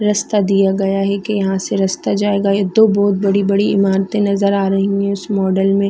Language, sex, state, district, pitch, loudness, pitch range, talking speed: Hindi, female, Chhattisgarh, Raigarh, 200 Hz, -15 LUFS, 195-200 Hz, 215 wpm